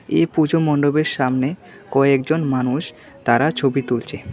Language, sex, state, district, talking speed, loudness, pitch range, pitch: Bengali, male, Tripura, West Tripura, 125 wpm, -19 LUFS, 130-155 Hz, 140 Hz